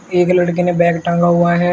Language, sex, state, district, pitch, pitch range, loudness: Hindi, male, Uttar Pradesh, Shamli, 175 Hz, 175-180 Hz, -14 LUFS